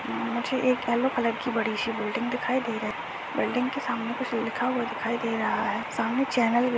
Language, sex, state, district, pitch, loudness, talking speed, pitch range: Hindi, female, Maharashtra, Sindhudurg, 240 Hz, -27 LUFS, 195 wpm, 230-250 Hz